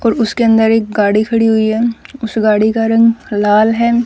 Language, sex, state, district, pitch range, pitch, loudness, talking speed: Hindi, female, Haryana, Rohtak, 215-230 Hz, 225 Hz, -12 LUFS, 205 wpm